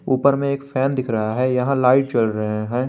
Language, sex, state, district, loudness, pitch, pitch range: Hindi, male, Jharkhand, Garhwa, -19 LUFS, 130 Hz, 115-135 Hz